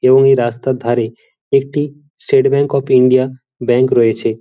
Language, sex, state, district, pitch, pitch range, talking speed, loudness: Bengali, male, West Bengal, Jhargram, 130 Hz, 120-140 Hz, 150 wpm, -14 LUFS